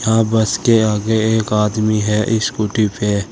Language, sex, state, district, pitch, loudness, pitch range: Hindi, male, Uttar Pradesh, Saharanpur, 110 Hz, -16 LUFS, 105-110 Hz